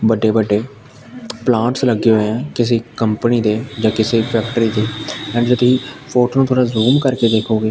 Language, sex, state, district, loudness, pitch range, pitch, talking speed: Punjabi, male, Punjab, Pathankot, -16 LUFS, 110-125 Hz, 115 Hz, 170 wpm